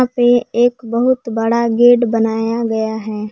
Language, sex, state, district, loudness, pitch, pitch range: Hindi, female, Jharkhand, Palamu, -15 LUFS, 230 Hz, 225-240 Hz